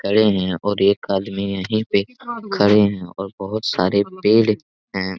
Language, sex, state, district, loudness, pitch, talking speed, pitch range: Hindi, male, Jharkhand, Jamtara, -19 LUFS, 100 Hz, 150 wpm, 95-110 Hz